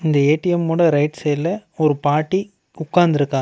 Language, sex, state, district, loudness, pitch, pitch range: Tamil, male, Tamil Nadu, Namakkal, -18 LUFS, 155 Hz, 145-175 Hz